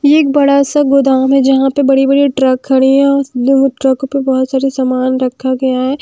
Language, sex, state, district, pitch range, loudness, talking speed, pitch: Hindi, female, Haryana, Jhajjar, 260-275 Hz, -11 LUFS, 220 wpm, 270 Hz